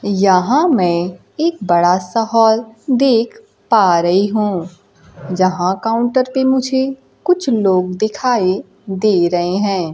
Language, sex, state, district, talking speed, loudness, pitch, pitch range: Hindi, female, Bihar, Kaimur, 120 wpm, -15 LUFS, 205 Hz, 185-250 Hz